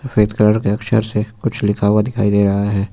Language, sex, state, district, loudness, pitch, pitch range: Hindi, male, Uttar Pradesh, Lucknow, -16 LUFS, 105 Hz, 100-110 Hz